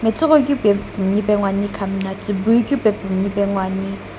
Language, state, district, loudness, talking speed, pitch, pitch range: Sumi, Nagaland, Dimapur, -18 LUFS, 145 wpm, 200 Hz, 195-220 Hz